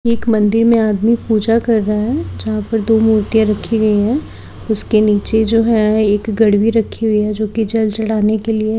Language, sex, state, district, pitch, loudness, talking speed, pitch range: Hindi, female, Haryana, Rohtak, 220 Hz, -14 LUFS, 205 wpm, 215-225 Hz